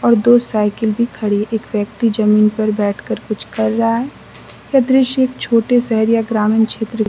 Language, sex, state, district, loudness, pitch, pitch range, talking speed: Hindi, female, Mizoram, Aizawl, -15 LUFS, 225 Hz, 215-235 Hz, 205 wpm